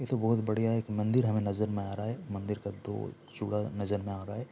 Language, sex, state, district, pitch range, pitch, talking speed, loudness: Hindi, male, Bihar, Saharsa, 100-115 Hz, 105 Hz, 295 wpm, -33 LUFS